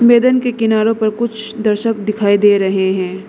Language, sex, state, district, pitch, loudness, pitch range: Hindi, female, Arunachal Pradesh, Lower Dibang Valley, 215 Hz, -14 LUFS, 205-230 Hz